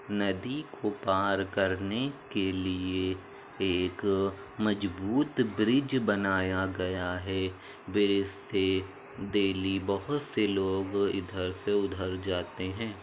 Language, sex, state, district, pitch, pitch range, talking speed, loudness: Hindi, male, Uttar Pradesh, Jalaun, 95 Hz, 95-105 Hz, 110 wpm, -30 LUFS